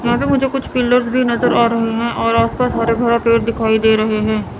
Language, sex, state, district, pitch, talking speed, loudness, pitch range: Hindi, female, Chandigarh, Chandigarh, 235 Hz, 260 wpm, -15 LUFS, 230-245 Hz